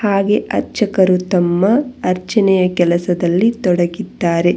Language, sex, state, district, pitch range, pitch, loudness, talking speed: Kannada, female, Karnataka, Bangalore, 175-210 Hz, 185 Hz, -15 LUFS, 80 wpm